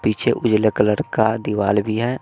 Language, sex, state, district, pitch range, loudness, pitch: Hindi, male, Bihar, West Champaran, 105-115 Hz, -19 LUFS, 110 Hz